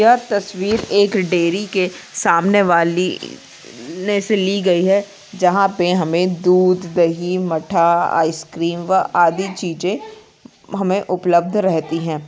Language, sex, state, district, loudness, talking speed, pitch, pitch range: Hindi, female, Bihar, East Champaran, -17 LUFS, 125 wpm, 185 Hz, 170-200 Hz